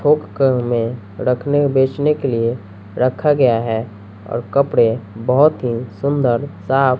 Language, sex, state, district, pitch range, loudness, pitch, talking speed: Hindi, female, Bihar, West Champaran, 115-140 Hz, -17 LUFS, 125 Hz, 145 wpm